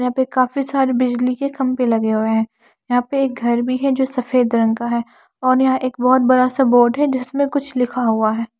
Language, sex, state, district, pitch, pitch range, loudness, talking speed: Hindi, female, Maharashtra, Washim, 255 Hz, 235-265 Hz, -17 LUFS, 235 wpm